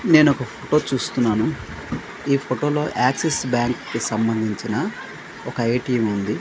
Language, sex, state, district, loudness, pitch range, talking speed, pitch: Telugu, male, Andhra Pradesh, Manyam, -22 LUFS, 115-145 Hz, 120 wpm, 125 Hz